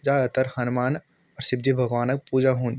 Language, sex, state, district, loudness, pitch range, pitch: Garhwali, male, Uttarakhand, Tehri Garhwal, -24 LUFS, 125-135 Hz, 130 Hz